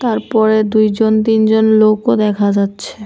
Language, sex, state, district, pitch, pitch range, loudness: Bengali, female, Tripura, West Tripura, 220 Hz, 210-220 Hz, -13 LUFS